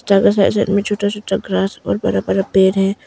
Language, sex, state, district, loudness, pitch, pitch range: Hindi, female, Arunachal Pradesh, Longding, -16 LUFS, 195 Hz, 190-205 Hz